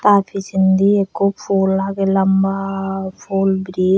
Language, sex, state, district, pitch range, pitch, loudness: Chakma, female, Tripura, Unakoti, 190-195 Hz, 195 Hz, -17 LUFS